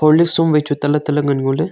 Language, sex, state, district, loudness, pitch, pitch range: Wancho, male, Arunachal Pradesh, Longding, -15 LUFS, 150 Hz, 145-160 Hz